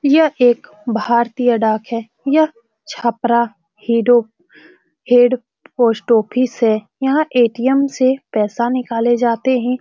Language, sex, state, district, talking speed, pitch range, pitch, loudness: Hindi, female, Bihar, Saran, 115 wpm, 230-260 Hz, 240 Hz, -16 LUFS